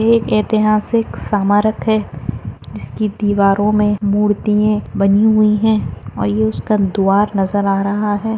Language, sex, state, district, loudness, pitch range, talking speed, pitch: Hindi, female, Maharashtra, Dhule, -15 LUFS, 195-215 Hz, 135 wpm, 205 Hz